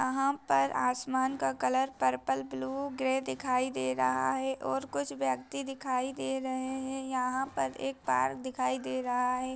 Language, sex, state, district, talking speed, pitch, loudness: Hindi, female, Bihar, Begusarai, 170 wpm, 245 Hz, -32 LUFS